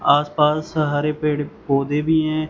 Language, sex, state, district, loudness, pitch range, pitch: Hindi, male, Punjab, Fazilka, -20 LUFS, 145-155 Hz, 150 Hz